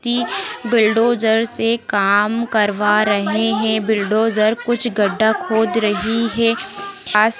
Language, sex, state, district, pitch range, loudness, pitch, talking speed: Hindi, female, Rajasthan, Nagaur, 210-230 Hz, -17 LUFS, 220 Hz, 115 wpm